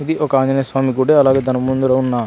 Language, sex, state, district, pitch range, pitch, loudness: Telugu, male, Andhra Pradesh, Anantapur, 130-135 Hz, 135 Hz, -15 LUFS